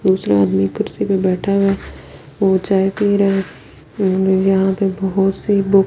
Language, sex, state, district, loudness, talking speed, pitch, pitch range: Hindi, female, Delhi, New Delhi, -16 LUFS, 195 wpm, 195 Hz, 190-195 Hz